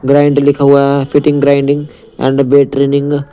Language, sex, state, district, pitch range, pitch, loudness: Hindi, male, Punjab, Pathankot, 140-145 Hz, 140 Hz, -11 LUFS